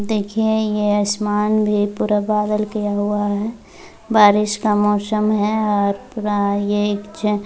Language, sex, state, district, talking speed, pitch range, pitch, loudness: Hindi, female, Bihar, Muzaffarpur, 160 wpm, 205-215 Hz, 210 Hz, -18 LUFS